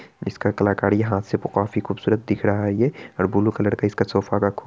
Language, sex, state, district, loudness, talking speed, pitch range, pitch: Hindi, male, Bihar, Araria, -22 LUFS, 230 wpm, 100-105 Hz, 100 Hz